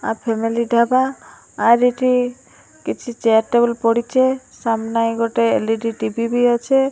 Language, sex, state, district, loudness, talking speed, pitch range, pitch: Odia, female, Odisha, Malkangiri, -18 LUFS, 140 wpm, 230-250 Hz, 235 Hz